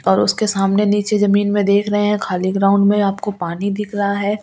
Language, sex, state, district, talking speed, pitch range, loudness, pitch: Hindi, female, Delhi, New Delhi, 245 wpm, 195-205 Hz, -17 LUFS, 205 Hz